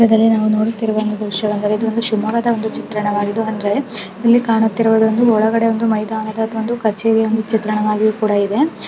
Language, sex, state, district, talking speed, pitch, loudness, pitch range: Kannada, female, Karnataka, Shimoga, 130 wpm, 220 Hz, -16 LUFS, 215-225 Hz